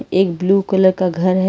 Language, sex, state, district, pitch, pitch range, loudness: Hindi, female, Karnataka, Bangalore, 185 Hz, 185-190 Hz, -16 LUFS